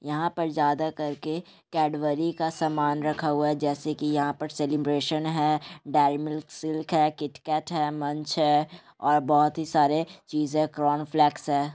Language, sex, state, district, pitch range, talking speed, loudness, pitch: Magahi, male, Bihar, Gaya, 150-155 Hz, 165 wpm, -26 LUFS, 150 Hz